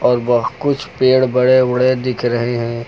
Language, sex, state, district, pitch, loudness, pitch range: Hindi, male, Uttar Pradesh, Lucknow, 125 Hz, -15 LUFS, 120-130 Hz